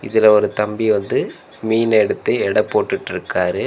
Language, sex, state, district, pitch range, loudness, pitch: Tamil, male, Tamil Nadu, Nilgiris, 105-110 Hz, -17 LUFS, 110 Hz